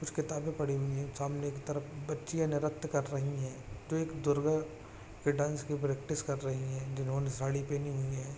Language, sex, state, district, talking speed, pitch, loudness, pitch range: Hindi, male, Chhattisgarh, Raigarh, 200 wpm, 145 Hz, -35 LUFS, 135-150 Hz